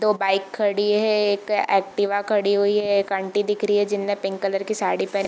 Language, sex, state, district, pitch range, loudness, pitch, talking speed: Hindi, female, Bihar, Gopalganj, 195-210 Hz, -22 LUFS, 205 Hz, 240 wpm